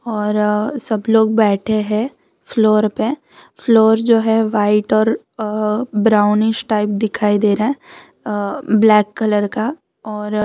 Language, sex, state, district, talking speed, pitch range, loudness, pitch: Hindi, female, Gujarat, Valsad, 140 wpm, 210-225 Hz, -16 LUFS, 215 Hz